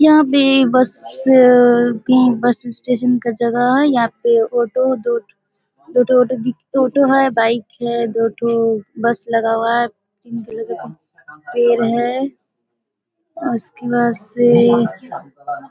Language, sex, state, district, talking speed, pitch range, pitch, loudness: Hindi, female, Bihar, Darbhanga, 135 wpm, 235-260 Hz, 240 Hz, -15 LUFS